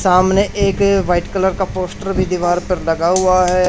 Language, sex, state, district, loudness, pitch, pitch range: Hindi, male, Haryana, Charkhi Dadri, -16 LUFS, 185 Hz, 180-195 Hz